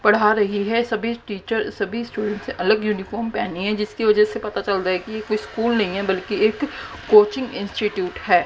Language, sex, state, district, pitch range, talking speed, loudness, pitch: Hindi, female, Haryana, Jhajjar, 200-225 Hz, 215 wpm, -21 LUFS, 210 Hz